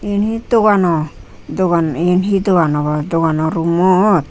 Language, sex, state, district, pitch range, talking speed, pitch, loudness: Chakma, female, Tripura, Unakoti, 160-195 Hz, 155 wpm, 170 Hz, -15 LUFS